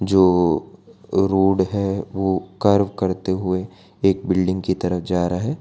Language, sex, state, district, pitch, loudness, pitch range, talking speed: Hindi, male, Gujarat, Valsad, 95 Hz, -20 LUFS, 90-95 Hz, 150 wpm